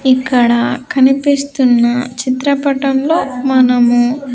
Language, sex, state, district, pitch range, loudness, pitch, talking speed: Telugu, female, Andhra Pradesh, Sri Satya Sai, 250-275 Hz, -13 LUFS, 260 Hz, 70 wpm